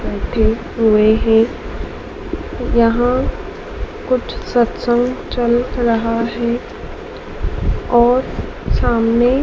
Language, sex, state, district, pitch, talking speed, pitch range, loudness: Hindi, female, Madhya Pradesh, Dhar, 235 Hz, 70 wpm, 230-245 Hz, -17 LUFS